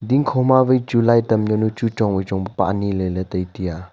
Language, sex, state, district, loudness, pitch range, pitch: Wancho, male, Arunachal Pradesh, Longding, -19 LUFS, 95-115 Hz, 105 Hz